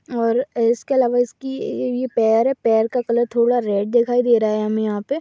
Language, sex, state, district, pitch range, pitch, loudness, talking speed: Hindi, female, Maharashtra, Sindhudurg, 225-250 Hz, 240 Hz, -19 LUFS, 205 wpm